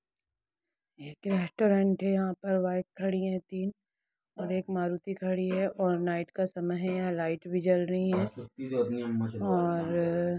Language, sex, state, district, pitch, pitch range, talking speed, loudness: Hindi, female, Jharkhand, Jamtara, 180 Hz, 170-190 Hz, 140 wpm, -31 LUFS